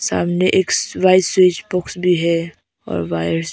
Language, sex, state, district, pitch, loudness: Hindi, female, Arunachal Pradesh, Papum Pare, 175 Hz, -17 LUFS